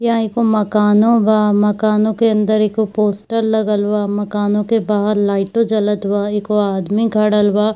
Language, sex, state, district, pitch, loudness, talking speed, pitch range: Hindi, female, Bihar, Darbhanga, 210 Hz, -15 LUFS, 165 wpm, 205-220 Hz